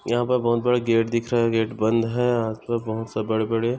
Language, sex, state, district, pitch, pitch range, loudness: Hindi, male, Maharashtra, Nagpur, 115 Hz, 110-120 Hz, -23 LUFS